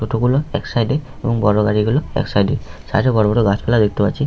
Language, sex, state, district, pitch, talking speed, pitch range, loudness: Bengali, male, West Bengal, Malda, 115 Hz, 265 wpm, 105-140 Hz, -17 LUFS